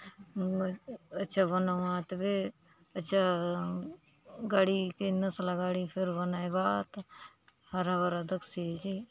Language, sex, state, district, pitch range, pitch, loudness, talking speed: Halbi, female, Chhattisgarh, Bastar, 180-195 Hz, 185 Hz, -33 LUFS, 120 wpm